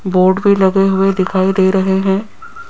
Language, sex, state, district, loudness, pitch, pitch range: Hindi, female, Rajasthan, Jaipur, -13 LUFS, 190 Hz, 190-195 Hz